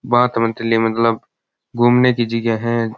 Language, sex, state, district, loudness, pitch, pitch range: Rajasthani, male, Rajasthan, Churu, -17 LUFS, 115 Hz, 115-120 Hz